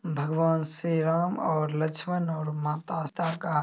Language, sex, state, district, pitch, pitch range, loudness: Maithili, male, Bihar, Samastipur, 160 Hz, 155-165 Hz, -28 LUFS